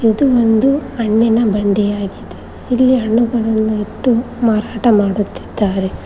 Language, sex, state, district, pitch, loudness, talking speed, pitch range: Kannada, female, Karnataka, Koppal, 225 Hz, -15 LUFS, 90 wpm, 210-240 Hz